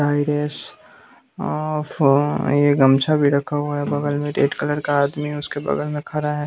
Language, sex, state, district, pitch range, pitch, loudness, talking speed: Hindi, male, Bihar, West Champaran, 145-150 Hz, 145 Hz, -20 LUFS, 165 wpm